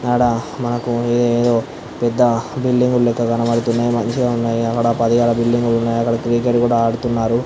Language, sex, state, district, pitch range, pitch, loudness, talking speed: Telugu, male, Andhra Pradesh, Anantapur, 115-120 Hz, 120 Hz, -17 LUFS, 105 wpm